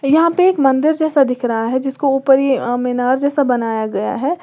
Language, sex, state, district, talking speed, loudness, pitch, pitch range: Hindi, female, Uttar Pradesh, Lalitpur, 215 wpm, -15 LUFS, 270 Hz, 245-285 Hz